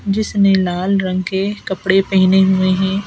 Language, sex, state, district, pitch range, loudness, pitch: Hindi, female, Madhya Pradesh, Bhopal, 190-195 Hz, -15 LUFS, 190 Hz